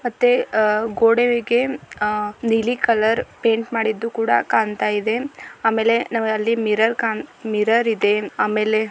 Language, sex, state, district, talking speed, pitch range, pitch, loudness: Kannada, female, Karnataka, Belgaum, 120 wpm, 215-235 Hz, 225 Hz, -19 LUFS